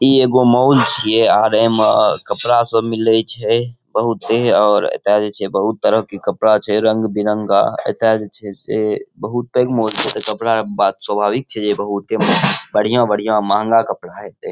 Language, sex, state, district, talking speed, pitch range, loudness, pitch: Maithili, male, Bihar, Saharsa, 155 wpm, 105-120 Hz, -15 LUFS, 110 Hz